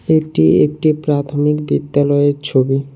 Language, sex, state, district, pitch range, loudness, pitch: Bengali, male, West Bengal, Cooch Behar, 140-150 Hz, -15 LUFS, 145 Hz